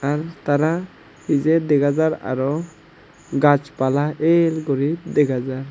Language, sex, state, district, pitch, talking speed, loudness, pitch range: Chakma, male, Tripura, Unakoti, 145 Hz, 125 wpm, -20 LUFS, 140-160 Hz